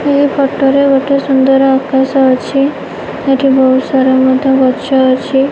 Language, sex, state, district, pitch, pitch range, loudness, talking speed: Odia, female, Odisha, Nuapada, 270 Hz, 265-275 Hz, -10 LUFS, 140 wpm